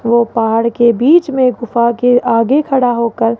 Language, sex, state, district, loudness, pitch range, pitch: Hindi, female, Rajasthan, Jaipur, -12 LUFS, 230-250 Hz, 235 Hz